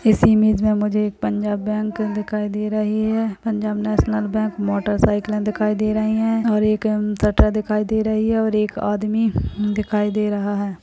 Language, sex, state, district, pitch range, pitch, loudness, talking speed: Hindi, female, Chhattisgarh, Balrampur, 210-215 Hz, 215 Hz, -20 LUFS, 195 wpm